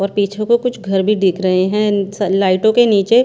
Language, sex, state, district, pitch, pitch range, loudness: Hindi, female, Haryana, Charkhi Dadri, 200 Hz, 195-220 Hz, -15 LUFS